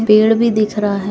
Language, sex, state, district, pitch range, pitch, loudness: Hindi, female, Bihar, Gopalganj, 205-225 Hz, 215 Hz, -14 LUFS